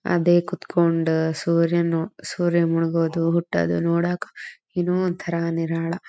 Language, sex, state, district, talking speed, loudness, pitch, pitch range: Kannada, female, Karnataka, Dharwad, 110 wpm, -22 LUFS, 170 Hz, 165-175 Hz